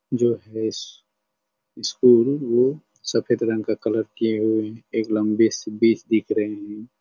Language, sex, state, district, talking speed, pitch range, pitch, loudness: Hindi, male, Chhattisgarh, Raigarh, 155 wpm, 105-115 Hz, 110 Hz, -22 LUFS